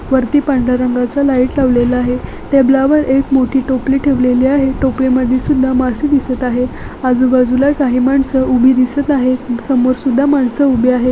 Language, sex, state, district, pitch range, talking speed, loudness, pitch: Marathi, female, Maharashtra, Chandrapur, 250-275 Hz, 155 wpm, -13 LUFS, 260 Hz